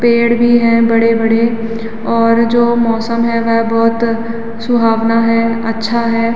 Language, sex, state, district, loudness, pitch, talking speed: Hindi, female, Uttarakhand, Tehri Garhwal, -13 LUFS, 230 Hz, 130 wpm